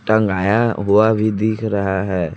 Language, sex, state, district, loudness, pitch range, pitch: Hindi, male, Chhattisgarh, Raipur, -17 LUFS, 95-110 Hz, 105 Hz